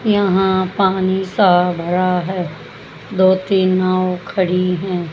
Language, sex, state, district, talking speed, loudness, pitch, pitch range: Hindi, female, Haryana, Jhajjar, 115 wpm, -16 LUFS, 185 Hz, 180-190 Hz